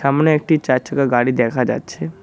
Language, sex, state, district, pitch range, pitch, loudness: Bengali, male, West Bengal, Cooch Behar, 120-145 Hz, 130 Hz, -17 LUFS